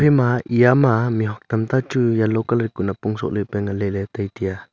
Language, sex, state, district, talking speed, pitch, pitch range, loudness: Wancho, male, Arunachal Pradesh, Longding, 240 wpm, 110 Hz, 100-120 Hz, -20 LUFS